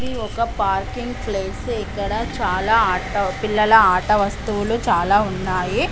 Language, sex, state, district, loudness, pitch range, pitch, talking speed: Telugu, female, Andhra Pradesh, Krishna, -19 LUFS, 185-225 Hz, 205 Hz, 120 wpm